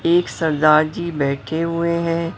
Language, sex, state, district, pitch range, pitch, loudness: Hindi, female, Maharashtra, Mumbai Suburban, 155-170 Hz, 165 Hz, -19 LUFS